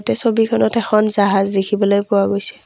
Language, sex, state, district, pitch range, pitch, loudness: Assamese, female, Assam, Kamrup Metropolitan, 200-220 Hz, 200 Hz, -16 LUFS